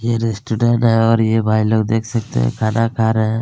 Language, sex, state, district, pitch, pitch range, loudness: Hindi, male, Chhattisgarh, Kabirdham, 110 Hz, 110-115 Hz, -16 LUFS